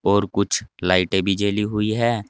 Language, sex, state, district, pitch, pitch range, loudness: Hindi, male, Uttar Pradesh, Saharanpur, 100 Hz, 100-110 Hz, -21 LUFS